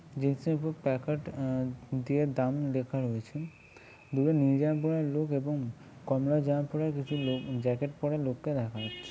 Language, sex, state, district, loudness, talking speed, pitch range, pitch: Bengali, male, West Bengal, Kolkata, -31 LUFS, 170 wpm, 130-150 Hz, 140 Hz